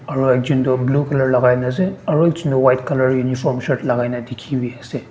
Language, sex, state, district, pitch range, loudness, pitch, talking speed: Nagamese, male, Nagaland, Dimapur, 125-140 Hz, -18 LUFS, 130 Hz, 235 wpm